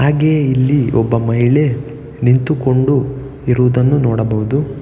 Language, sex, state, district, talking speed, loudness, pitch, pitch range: Kannada, male, Karnataka, Bangalore, 75 wpm, -14 LUFS, 135 Hz, 125-145 Hz